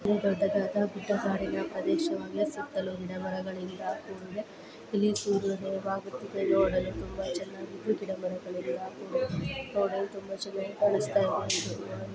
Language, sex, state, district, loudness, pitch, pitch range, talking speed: Kannada, female, Karnataka, Belgaum, -31 LUFS, 195 Hz, 185-205 Hz, 115 wpm